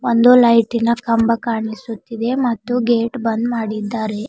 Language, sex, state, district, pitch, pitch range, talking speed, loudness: Kannada, female, Karnataka, Bidar, 230 Hz, 225-235 Hz, 125 wpm, -17 LUFS